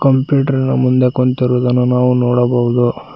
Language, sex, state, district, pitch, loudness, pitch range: Kannada, male, Karnataka, Koppal, 125 Hz, -14 LUFS, 125-130 Hz